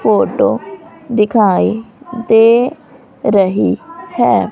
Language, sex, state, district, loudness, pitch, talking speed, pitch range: Hindi, female, Haryana, Rohtak, -13 LUFS, 235 Hz, 65 wpm, 220-260 Hz